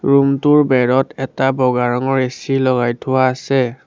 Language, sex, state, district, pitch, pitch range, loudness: Assamese, male, Assam, Sonitpur, 130 Hz, 125-135 Hz, -16 LUFS